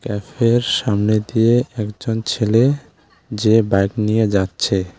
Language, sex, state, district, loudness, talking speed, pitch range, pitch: Bengali, male, West Bengal, Alipurduar, -17 LUFS, 110 wpm, 105-120 Hz, 110 Hz